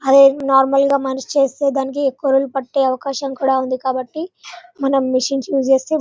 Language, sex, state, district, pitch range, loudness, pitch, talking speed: Telugu, female, Telangana, Karimnagar, 265-280 Hz, -17 LUFS, 270 Hz, 160 wpm